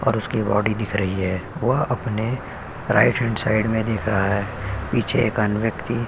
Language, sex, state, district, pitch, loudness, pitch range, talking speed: Hindi, male, Uttar Pradesh, Hamirpur, 110 Hz, -22 LUFS, 100-115 Hz, 195 wpm